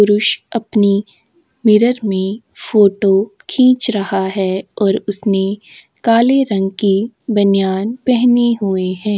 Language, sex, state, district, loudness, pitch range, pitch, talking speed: Hindi, female, Maharashtra, Aurangabad, -15 LUFS, 195-235 Hz, 205 Hz, 110 wpm